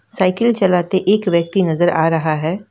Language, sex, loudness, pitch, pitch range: Hindi, female, -16 LUFS, 180 Hz, 165-195 Hz